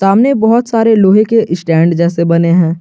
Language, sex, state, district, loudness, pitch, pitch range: Hindi, male, Jharkhand, Garhwa, -10 LUFS, 195 Hz, 170-225 Hz